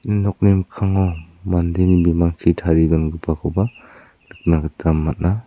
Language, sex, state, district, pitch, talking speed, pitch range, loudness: Garo, male, Meghalaya, South Garo Hills, 85 Hz, 110 wpm, 80-95 Hz, -18 LUFS